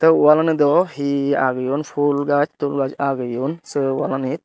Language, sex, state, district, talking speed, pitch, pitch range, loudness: Chakma, male, Tripura, Dhalai, 160 wpm, 145 Hz, 135-150 Hz, -19 LUFS